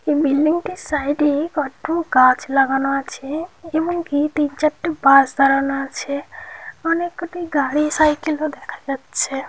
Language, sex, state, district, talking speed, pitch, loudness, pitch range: Bengali, female, West Bengal, Jhargram, 140 wpm, 295 Hz, -19 LUFS, 275-330 Hz